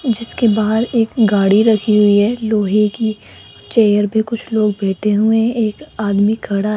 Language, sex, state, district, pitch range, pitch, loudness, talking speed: Hindi, female, Rajasthan, Jaipur, 205-225 Hz, 215 Hz, -15 LUFS, 170 wpm